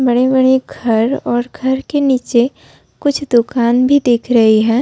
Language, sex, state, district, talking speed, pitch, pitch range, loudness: Hindi, female, Uttar Pradesh, Budaun, 150 wpm, 250 Hz, 235-265 Hz, -14 LUFS